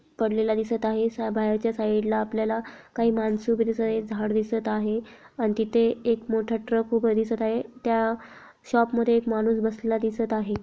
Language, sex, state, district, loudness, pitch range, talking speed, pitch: Marathi, female, Maharashtra, Chandrapur, -25 LUFS, 220-230 Hz, 170 wpm, 225 Hz